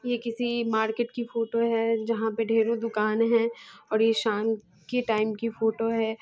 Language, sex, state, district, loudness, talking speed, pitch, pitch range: Hindi, female, Bihar, Muzaffarpur, -27 LUFS, 185 wpm, 225 Hz, 220-230 Hz